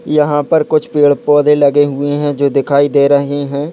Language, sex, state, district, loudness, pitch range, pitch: Hindi, male, Chhattisgarh, Kabirdham, -12 LUFS, 140-150 Hz, 145 Hz